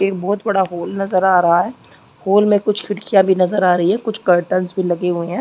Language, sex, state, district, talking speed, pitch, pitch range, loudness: Hindi, female, Chhattisgarh, Balrampur, 255 wpm, 190 Hz, 180-205 Hz, -16 LUFS